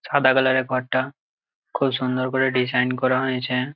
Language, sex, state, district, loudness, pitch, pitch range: Bengali, male, West Bengal, Jalpaiguri, -21 LUFS, 130 Hz, 125-130 Hz